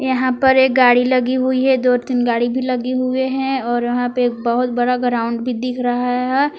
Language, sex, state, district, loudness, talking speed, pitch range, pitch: Hindi, female, Jharkhand, Palamu, -17 LUFS, 225 wpm, 245-260 Hz, 250 Hz